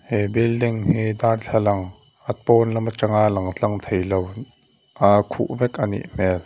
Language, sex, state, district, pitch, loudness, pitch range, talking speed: Mizo, male, Mizoram, Aizawl, 110 Hz, -21 LUFS, 100-115 Hz, 165 wpm